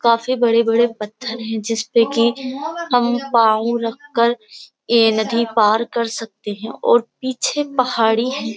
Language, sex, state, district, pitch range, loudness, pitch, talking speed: Hindi, female, Uttar Pradesh, Jyotiba Phule Nagar, 225-245 Hz, -18 LUFS, 235 Hz, 140 wpm